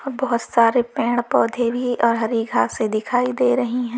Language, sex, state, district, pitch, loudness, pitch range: Hindi, female, Uttar Pradesh, Lalitpur, 240 Hz, -20 LUFS, 230-250 Hz